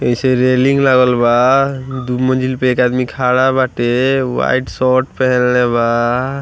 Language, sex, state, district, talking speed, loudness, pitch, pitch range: Bhojpuri, male, Bihar, East Champaran, 140 wpm, -14 LUFS, 130 Hz, 125-130 Hz